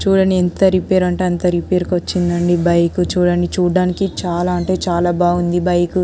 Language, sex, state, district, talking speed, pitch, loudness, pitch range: Telugu, female, Andhra Pradesh, Anantapur, 160 wpm, 180 Hz, -16 LUFS, 175-185 Hz